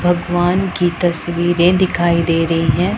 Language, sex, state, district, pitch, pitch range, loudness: Hindi, female, Punjab, Pathankot, 175 Hz, 170-175 Hz, -15 LUFS